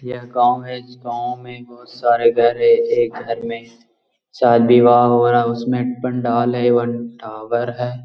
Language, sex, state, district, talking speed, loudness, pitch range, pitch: Magahi, male, Bihar, Jahanabad, 165 wpm, -17 LUFS, 120-125 Hz, 120 Hz